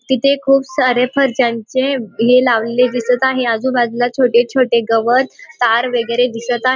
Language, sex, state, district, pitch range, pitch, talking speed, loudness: Marathi, female, Maharashtra, Dhule, 235-260 Hz, 250 Hz, 140 wpm, -15 LUFS